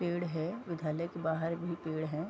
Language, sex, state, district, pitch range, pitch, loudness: Hindi, female, Bihar, East Champaran, 160-170 Hz, 165 Hz, -36 LUFS